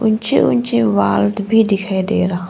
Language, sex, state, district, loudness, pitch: Hindi, female, Arunachal Pradesh, Longding, -15 LUFS, 185 Hz